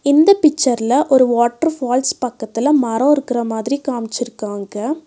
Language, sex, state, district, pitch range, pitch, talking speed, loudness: Tamil, female, Tamil Nadu, Nilgiris, 235-290 Hz, 255 Hz, 120 wpm, -16 LUFS